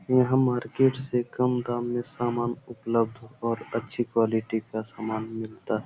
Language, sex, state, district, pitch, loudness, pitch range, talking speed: Hindi, male, Bihar, Supaul, 120 Hz, -27 LUFS, 110-125 Hz, 155 wpm